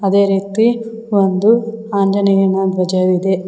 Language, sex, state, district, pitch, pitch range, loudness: Kannada, female, Karnataka, Koppal, 195 Hz, 190-220 Hz, -15 LUFS